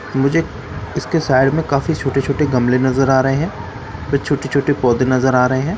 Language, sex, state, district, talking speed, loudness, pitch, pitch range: Hindi, male, Bihar, Katihar, 220 wpm, -16 LUFS, 135 Hz, 130-145 Hz